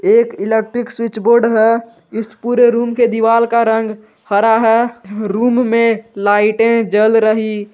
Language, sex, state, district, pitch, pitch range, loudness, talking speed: Hindi, male, Jharkhand, Garhwa, 225 Hz, 215-235 Hz, -14 LUFS, 145 wpm